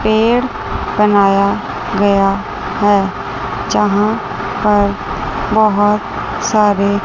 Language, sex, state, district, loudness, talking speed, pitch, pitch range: Hindi, female, Chandigarh, Chandigarh, -15 LUFS, 70 wpm, 205 Hz, 200-215 Hz